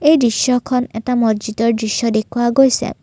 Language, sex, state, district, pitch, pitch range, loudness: Assamese, female, Assam, Kamrup Metropolitan, 240 Hz, 225-250 Hz, -16 LUFS